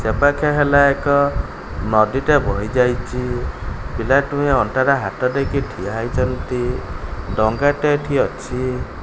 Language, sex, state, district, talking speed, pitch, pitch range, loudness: Odia, male, Odisha, Khordha, 105 wpm, 125 Hz, 110-140 Hz, -19 LUFS